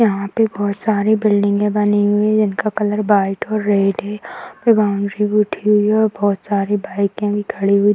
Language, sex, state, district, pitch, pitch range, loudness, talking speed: Hindi, female, Bihar, Madhepura, 205 Hz, 200-215 Hz, -17 LUFS, 205 wpm